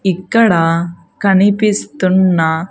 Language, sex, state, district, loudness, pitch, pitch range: Telugu, female, Andhra Pradesh, Sri Satya Sai, -13 LUFS, 185 Hz, 170-200 Hz